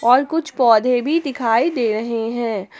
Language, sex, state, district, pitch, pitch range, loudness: Hindi, female, Jharkhand, Palamu, 235 Hz, 225-260 Hz, -18 LUFS